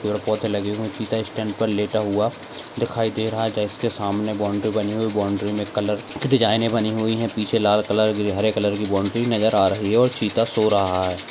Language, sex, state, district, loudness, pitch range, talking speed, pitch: Hindi, male, Maharashtra, Dhule, -21 LUFS, 105-110 Hz, 215 wpm, 110 Hz